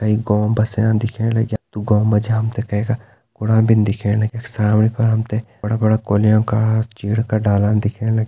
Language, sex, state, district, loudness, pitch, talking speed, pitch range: Hindi, male, Uttarakhand, Tehri Garhwal, -18 LUFS, 110 Hz, 190 wpm, 105-110 Hz